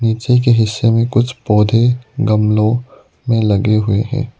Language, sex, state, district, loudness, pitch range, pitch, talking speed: Hindi, male, Arunachal Pradesh, Lower Dibang Valley, -14 LUFS, 110-125 Hz, 115 Hz, 150 wpm